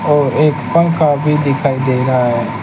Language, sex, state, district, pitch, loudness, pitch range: Hindi, male, Rajasthan, Bikaner, 140 Hz, -14 LUFS, 125-150 Hz